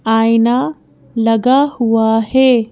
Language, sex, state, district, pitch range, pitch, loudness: Hindi, female, Madhya Pradesh, Bhopal, 225-260 Hz, 230 Hz, -13 LUFS